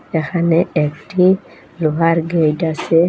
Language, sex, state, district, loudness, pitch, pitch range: Bengali, female, Assam, Hailakandi, -16 LUFS, 165 Hz, 160-175 Hz